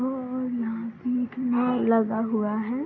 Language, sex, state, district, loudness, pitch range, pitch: Hindi, female, Bihar, East Champaran, -26 LUFS, 225-250 Hz, 245 Hz